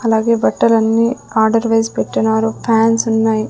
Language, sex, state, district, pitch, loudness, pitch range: Telugu, female, Andhra Pradesh, Sri Satya Sai, 225 Hz, -14 LUFS, 220-230 Hz